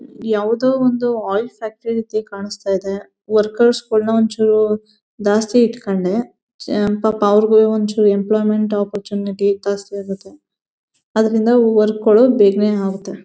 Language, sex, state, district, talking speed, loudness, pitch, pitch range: Kannada, female, Karnataka, Mysore, 115 wpm, -16 LUFS, 215 Hz, 205-225 Hz